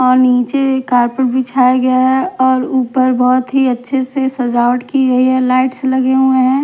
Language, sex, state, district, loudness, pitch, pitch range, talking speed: Hindi, female, Punjab, Kapurthala, -13 LUFS, 255 Hz, 255-265 Hz, 180 wpm